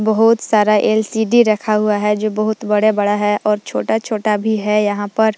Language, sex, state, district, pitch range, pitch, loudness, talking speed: Hindi, female, Jharkhand, Palamu, 210-220 Hz, 215 Hz, -16 LUFS, 210 wpm